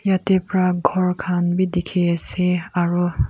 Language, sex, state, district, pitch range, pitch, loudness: Nagamese, female, Nagaland, Kohima, 175-185 Hz, 180 Hz, -20 LUFS